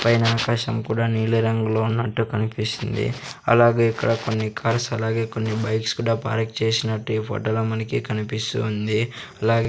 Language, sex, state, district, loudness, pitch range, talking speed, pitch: Telugu, male, Andhra Pradesh, Sri Satya Sai, -23 LUFS, 110-115 Hz, 155 wpm, 115 Hz